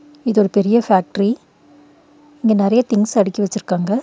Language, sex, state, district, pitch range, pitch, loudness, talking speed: Tamil, female, Tamil Nadu, Nilgiris, 200-245 Hz, 215 Hz, -17 LUFS, 135 wpm